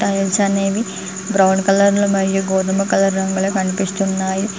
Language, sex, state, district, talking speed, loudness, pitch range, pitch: Telugu, female, Telangana, Mahabubabad, 130 wpm, -17 LUFS, 190-195 Hz, 195 Hz